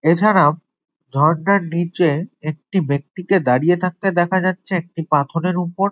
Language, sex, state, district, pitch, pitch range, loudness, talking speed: Bengali, male, West Bengal, Jalpaiguri, 170 Hz, 155-185 Hz, -18 LUFS, 120 wpm